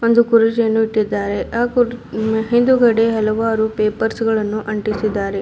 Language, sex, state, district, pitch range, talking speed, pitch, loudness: Kannada, female, Karnataka, Bidar, 215-230 Hz, 110 wpm, 220 Hz, -17 LUFS